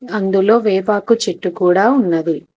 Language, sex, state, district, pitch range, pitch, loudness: Telugu, female, Telangana, Hyderabad, 180-220 Hz, 195 Hz, -15 LUFS